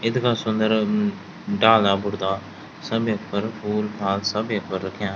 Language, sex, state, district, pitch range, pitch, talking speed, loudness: Garhwali, male, Uttarakhand, Tehri Garhwal, 100-115 Hz, 105 Hz, 140 wpm, -23 LUFS